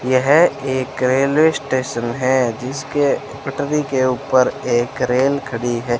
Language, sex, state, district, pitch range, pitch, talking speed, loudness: Hindi, male, Rajasthan, Bikaner, 125-140 Hz, 130 Hz, 130 wpm, -18 LUFS